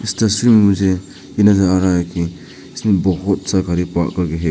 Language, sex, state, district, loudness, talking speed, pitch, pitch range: Hindi, male, Arunachal Pradesh, Papum Pare, -16 LUFS, 160 wpm, 95 Hz, 90-100 Hz